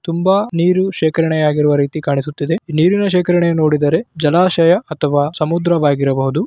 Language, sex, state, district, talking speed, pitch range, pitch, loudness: Kannada, male, Karnataka, Raichur, 100 wpm, 150-175 Hz, 160 Hz, -15 LUFS